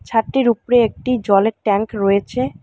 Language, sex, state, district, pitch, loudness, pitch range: Bengali, female, West Bengal, Alipurduar, 225 Hz, -17 LUFS, 200-245 Hz